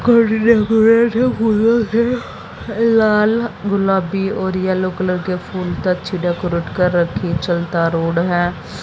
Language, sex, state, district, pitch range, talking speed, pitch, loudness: Hindi, female, Haryana, Jhajjar, 180-225 Hz, 100 wpm, 190 Hz, -16 LUFS